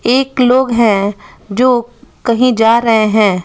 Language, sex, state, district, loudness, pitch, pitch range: Hindi, female, Bihar, West Champaran, -12 LUFS, 235 Hz, 215-250 Hz